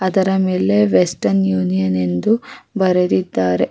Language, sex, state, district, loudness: Kannada, female, Karnataka, Raichur, -17 LUFS